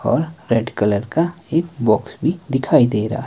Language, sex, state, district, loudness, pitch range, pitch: Hindi, male, Himachal Pradesh, Shimla, -19 LUFS, 115-165 Hz, 135 Hz